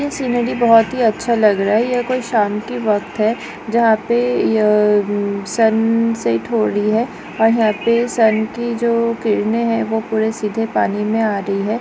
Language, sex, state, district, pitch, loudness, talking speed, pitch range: Hindi, female, Goa, North and South Goa, 225 Hz, -17 LUFS, 195 wpm, 210-235 Hz